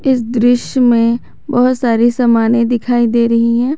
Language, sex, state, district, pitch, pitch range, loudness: Hindi, male, Jharkhand, Garhwa, 240 Hz, 235-245 Hz, -13 LUFS